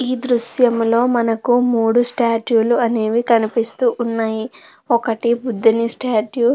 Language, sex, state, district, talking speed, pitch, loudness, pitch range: Telugu, female, Andhra Pradesh, Krishna, 120 wpm, 235 Hz, -17 LUFS, 230-245 Hz